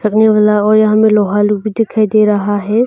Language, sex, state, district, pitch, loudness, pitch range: Hindi, female, Arunachal Pradesh, Longding, 215 Hz, -11 LUFS, 210-215 Hz